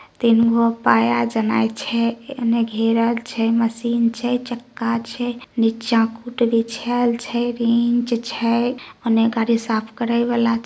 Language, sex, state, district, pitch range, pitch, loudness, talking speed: Maithili, female, Bihar, Samastipur, 230-235 Hz, 230 Hz, -20 LUFS, 135 wpm